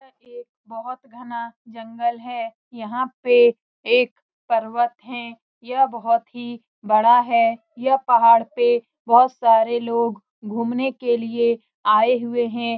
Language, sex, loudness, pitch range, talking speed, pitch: Hindi, female, -19 LUFS, 230-245 Hz, 130 wpm, 235 Hz